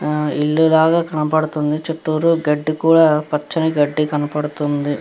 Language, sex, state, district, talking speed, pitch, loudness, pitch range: Telugu, female, Andhra Pradesh, Guntur, 120 wpm, 150 Hz, -17 LUFS, 150-160 Hz